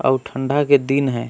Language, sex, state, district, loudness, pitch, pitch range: Surgujia, male, Chhattisgarh, Sarguja, -18 LUFS, 135 Hz, 130-140 Hz